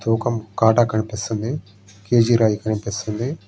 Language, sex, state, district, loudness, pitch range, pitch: Telugu, male, Andhra Pradesh, Srikakulam, -20 LUFS, 105-115 Hz, 110 Hz